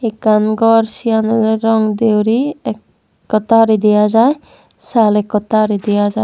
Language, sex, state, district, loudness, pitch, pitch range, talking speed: Chakma, female, Tripura, Dhalai, -13 LUFS, 220 Hz, 215-225 Hz, 155 wpm